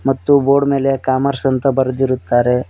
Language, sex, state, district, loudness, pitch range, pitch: Kannada, male, Karnataka, Koppal, -15 LUFS, 130-140 Hz, 135 Hz